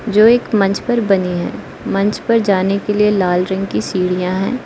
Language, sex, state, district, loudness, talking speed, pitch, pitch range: Hindi, female, Arunachal Pradesh, Lower Dibang Valley, -15 LUFS, 205 wpm, 200 Hz, 185-215 Hz